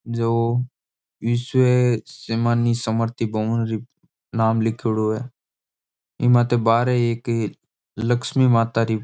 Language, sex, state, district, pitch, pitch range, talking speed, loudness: Marwari, male, Rajasthan, Nagaur, 115 Hz, 110-120 Hz, 100 wpm, -21 LUFS